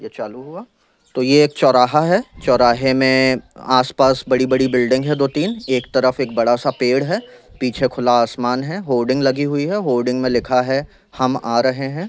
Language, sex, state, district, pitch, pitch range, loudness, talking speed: Hindi, male, Chhattisgarh, Rajnandgaon, 130 Hz, 125-140 Hz, -17 LUFS, 190 wpm